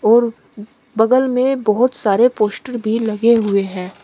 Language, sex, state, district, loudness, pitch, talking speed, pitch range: Hindi, female, Uttar Pradesh, Shamli, -16 LUFS, 225 Hz, 150 wpm, 210-250 Hz